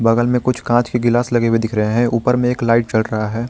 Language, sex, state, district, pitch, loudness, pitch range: Hindi, male, Jharkhand, Garhwa, 120 Hz, -17 LUFS, 115-120 Hz